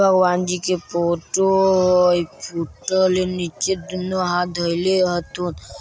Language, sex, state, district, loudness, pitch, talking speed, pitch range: Bajjika, male, Bihar, Vaishali, -20 LUFS, 180 Hz, 115 wpm, 175-185 Hz